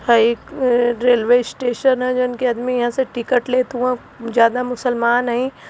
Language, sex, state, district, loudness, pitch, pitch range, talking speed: Hindi, female, Uttar Pradesh, Varanasi, -18 LUFS, 245 Hz, 240-250 Hz, 180 wpm